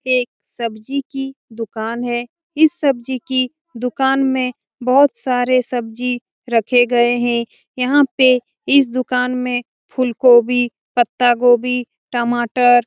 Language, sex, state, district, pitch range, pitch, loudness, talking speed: Hindi, female, Bihar, Lakhisarai, 240-260 Hz, 250 Hz, -17 LUFS, 115 wpm